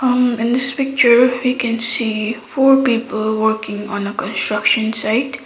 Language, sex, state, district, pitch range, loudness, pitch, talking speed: English, female, Sikkim, Gangtok, 220-255 Hz, -16 LUFS, 235 Hz, 155 wpm